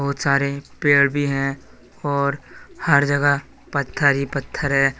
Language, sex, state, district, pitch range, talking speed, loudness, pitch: Hindi, male, Jharkhand, Deoghar, 135-140 Hz, 145 wpm, -20 LUFS, 140 Hz